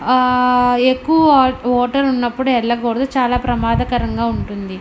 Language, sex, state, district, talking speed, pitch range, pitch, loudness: Telugu, female, Andhra Pradesh, Anantapur, 110 wpm, 235-260 Hz, 245 Hz, -15 LUFS